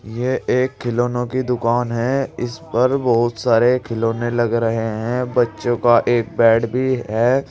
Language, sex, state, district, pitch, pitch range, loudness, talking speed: Hindi, male, Uttar Pradesh, Saharanpur, 120 Hz, 115-125 Hz, -18 LUFS, 160 wpm